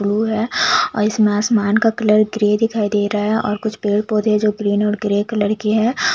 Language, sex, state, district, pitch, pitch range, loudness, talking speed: Hindi, female, Chhattisgarh, Jashpur, 210 Hz, 210-220 Hz, -17 LUFS, 225 wpm